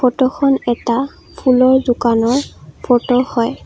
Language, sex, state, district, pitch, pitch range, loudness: Assamese, female, Assam, Kamrup Metropolitan, 250 Hz, 240-265 Hz, -15 LUFS